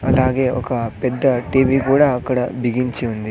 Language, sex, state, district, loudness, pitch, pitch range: Telugu, male, Andhra Pradesh, Sri Satya Sai, -18 LUFS, 125 Hz, 125-130 Hz